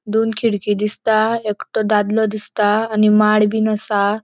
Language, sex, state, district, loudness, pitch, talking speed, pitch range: Konkani, female, Goa, North and South Goa, -17 LUFS, 215 Hz, 140 wpm, 210-220 Hz